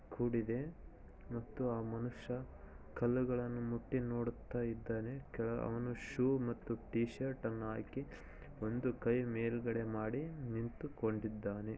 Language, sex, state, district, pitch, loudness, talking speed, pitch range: Kannada, male, Karnataka, Shimoga, 120 Hz, -40 LUFS, 105 wpm, 115-125 Hz